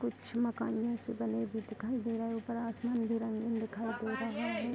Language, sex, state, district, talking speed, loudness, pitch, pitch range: Hindi, female, Bihar, Vaishali, 225 wpm, -36 LUFS, 230 Hz, 225-235 Hz